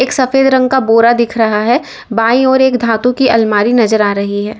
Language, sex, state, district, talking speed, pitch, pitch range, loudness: Hindi, female, Uttar Pradesh, Lalitpur, 235 wpm, 235 Hz, 220-260 Hz, -11 LUFS